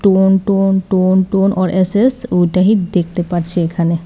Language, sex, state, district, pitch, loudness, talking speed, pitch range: Bengali, female, Tripura, West Tripura, 190 Hz, -14 LUFS, 135 wpm, 175-195 Hz